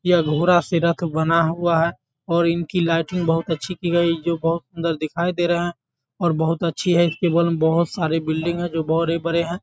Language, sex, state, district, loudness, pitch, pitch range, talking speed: Hindi, male, Bihar, Bhagalpur, -21 LUFS, 170 Hz, 165-170 Hz, 225 wpm